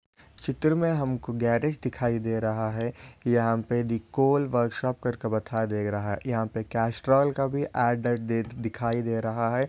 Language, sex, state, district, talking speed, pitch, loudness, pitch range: Hindi, male, Maharashtra, Solapur, 175 wpm, 120 Hz, -27 LUFS, 115-130 Hz